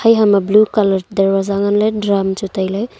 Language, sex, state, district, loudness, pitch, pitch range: Wancho, female, Arunachal Pradesh, Longding, -15 LUFS, 200 Hz, 195-215 Hz